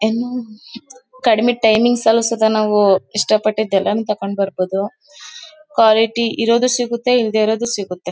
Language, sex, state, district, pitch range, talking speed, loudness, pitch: Kannada, female, Karnataka, Mysore, 210-240 Hz, 120 wpm, -16 LUFS, 225 Hz